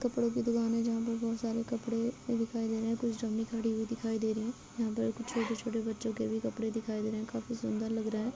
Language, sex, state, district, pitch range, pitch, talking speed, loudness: Hindi, female, Bihar, Kishanganj, 225-235 Hz, 230 Hz, 275 wpm, -34 LUFS